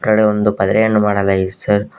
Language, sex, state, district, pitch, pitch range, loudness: Kannada, male, Karnataka, Koppal, 105 Hz, 95-110 Hz, -15 LUFS